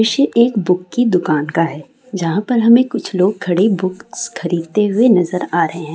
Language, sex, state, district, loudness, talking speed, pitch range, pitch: Hindi, female, Bihar, Saran, -15 LUFS, 200 wpm, 175-235 Hz, 185 Hz